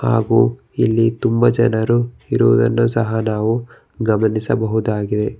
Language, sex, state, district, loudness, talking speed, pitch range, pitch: Kannada, male, Karnataka, Bangalore, -17 LUFS, 90 wpm, 110-120 Hz, 115 Hz